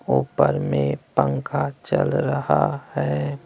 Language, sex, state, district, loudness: Hindi, male, Bihar, West Champaran, -22 LUFS